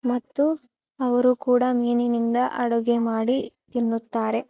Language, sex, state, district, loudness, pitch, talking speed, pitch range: Kannada, female, Karnataka, Chamarajanagar, -23 LUFS, 245 Hz, 95 wpm, 235-250 Hz